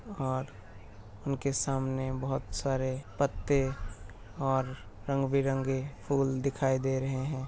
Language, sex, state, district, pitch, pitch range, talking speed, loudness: Hindi, male, Bihar, Purnia, 130 Hz, 125-135 Hz, 110 wpm, -32 LUFS